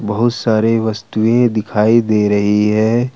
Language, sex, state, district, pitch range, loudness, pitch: Hindi, male, Jharkhand, Ranchi, 105-115 Hz, -14 LUFS, 110 Hz